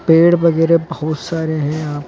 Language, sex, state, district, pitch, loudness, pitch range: Hindi, male, Uttar Pradesh, Lucknow, 160 Hz, -15 LUFS, 155-165 Hz